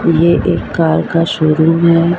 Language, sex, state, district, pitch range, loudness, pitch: Hindi, female, Maharashtra, Mumbai Suburban, 160-170 Hz, -12 LUFS, 165 Hz